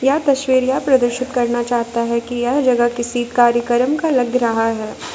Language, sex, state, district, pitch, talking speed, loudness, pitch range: Hindi, female, Jharkhand, Ranchi, 240 Hz, 185 wpm, -17 LUFS, 240-260 Hz